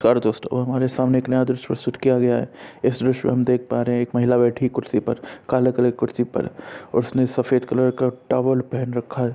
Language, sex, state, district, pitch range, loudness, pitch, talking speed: Hindi, male, Bihar, Jahanabad, 120-130 Hz, -21 LUFS, 125 Hz, 250 wpm